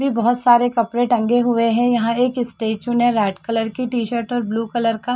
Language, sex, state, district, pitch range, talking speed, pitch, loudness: Hindi, female, Uttar Pradesh, Varanasi, 230-245 Hz, 230 wpm, 240 Hz, -18 LUFS